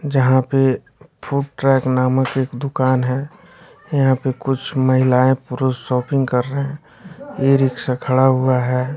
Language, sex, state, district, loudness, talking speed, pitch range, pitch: Hindi, male, Bihar, West Champaran, -18 LUFS, 145 wpm, 130-140 Hz, 130 Hz